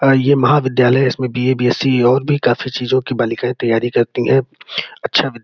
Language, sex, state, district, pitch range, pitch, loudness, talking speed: Hindi, male, Uttar Pradesh, Gorakhpur, 125-135 Hz, 130 Hz, -16 LUFS, 175 wpm